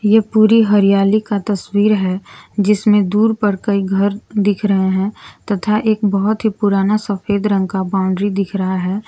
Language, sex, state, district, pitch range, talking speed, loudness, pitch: Hindi, female, Jharkhand, Garhwa, 195-210 Hz, 170 wpm, -16 LUFS, 205 Hz